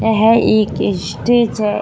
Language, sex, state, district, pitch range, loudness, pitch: Hindi, female, Bihar, Saran, 215-230 Hz, -14 LUFS, 220 Hz